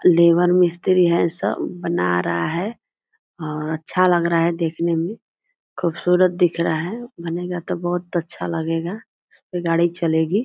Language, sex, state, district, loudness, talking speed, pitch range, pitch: Angika, female, Bihar, Purnia, -20 LUFS, 150 wpm, 165-180 Hz, 175 Hz